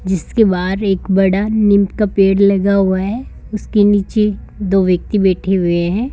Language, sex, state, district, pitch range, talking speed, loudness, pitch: Hindi, female, Rajasthan, Bikaner, 190-210 Hz, 165 wpm, -14 LUFS, 195 Hz